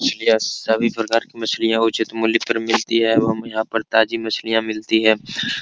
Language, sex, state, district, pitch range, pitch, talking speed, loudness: Hindi, male, Bihar, Supaul, 110-115 Hz, 115 Hz, 180 wpm, -19 LUFS